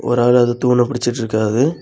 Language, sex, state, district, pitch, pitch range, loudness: Tamil, male, Tamil Nadu, Kanyakumari, 120 Hz, 120-125 Hz, -16 LUFS